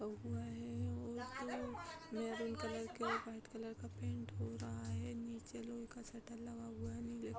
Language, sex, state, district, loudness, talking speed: Hindi, female, Uttar Pradesh, Budaun, -46 LUFS, 195 wpm